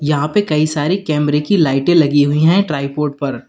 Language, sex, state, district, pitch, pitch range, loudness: Hindi, male, Uttar Pradesh, Lalitpur, 150 Hz, 145-165 Hz, -15 LUFS